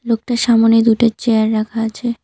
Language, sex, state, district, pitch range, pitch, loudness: Bengali, female, West Bengal, Cooch Behar, 225-235 Hz, 225 Hz, -15 LUFS